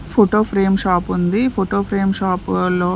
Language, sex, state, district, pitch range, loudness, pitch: Telugu, female, Andhra Pradesh, Sri Satya Sai, 180-200 Hz, -17 LUFS, 195 Hz